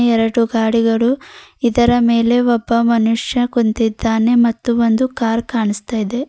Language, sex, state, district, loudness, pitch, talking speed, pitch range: Kannada, female, Karnataka, Bidar, -15 LUFS, 235 Hz, 105 wpm, 225-240 Hz